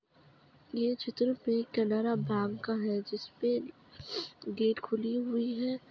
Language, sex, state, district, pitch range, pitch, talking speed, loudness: Hindi, female, Uttar Pradesh, Budaun, 220-240 Hz, 230 Hz, 110 wpm, -33 LUFS